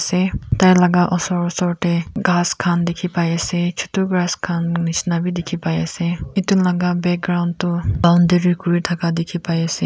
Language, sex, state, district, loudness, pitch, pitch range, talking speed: Nagamese, female, Nagaland, Kohima, -18 LUFS, 175 Hz, 170-180 Hz, 175 wpm